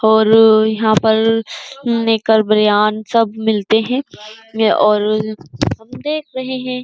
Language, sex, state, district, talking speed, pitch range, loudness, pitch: Hindi, female, Uttar Pradesh, Jyotiba Phule Nagar, 115 wpm, 215-230 Hz, -15 LUFS, 220 Hz